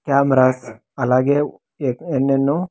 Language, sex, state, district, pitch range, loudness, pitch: Telugu, male, Andhra Pradesh, Sri Satya Sai, 125-145 Hz, -18 LUFS, 135 Hz